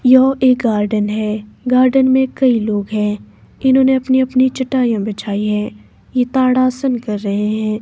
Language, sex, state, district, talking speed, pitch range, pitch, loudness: Hindi, female, Himachal Pradesh, Shimla, 155 wpm, 210-260 Hz, 245 Hz, -15 LUFS